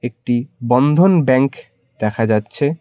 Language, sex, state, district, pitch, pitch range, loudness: Bengali, male, West Bengal, Cooch Behar, 125 Hz, 120-145 Hz, -16 LUFS